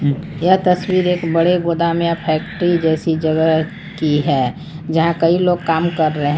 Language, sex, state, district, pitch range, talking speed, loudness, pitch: Hindi, female, Jharkhand, Palamu, 160-175 Hz, 170 wpm, -17 LUFS, 165 Hz